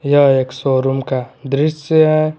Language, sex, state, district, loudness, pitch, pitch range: Hindi, male, Jharkhand, Garhwa, -15 LUFS, 140 Hz, 135-155 Hz